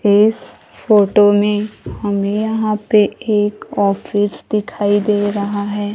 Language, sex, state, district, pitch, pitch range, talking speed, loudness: Hindi, female, Maharashtra, Gondia, 205 Hz, 205-210 Hz, 120 wpm, -16 LUFS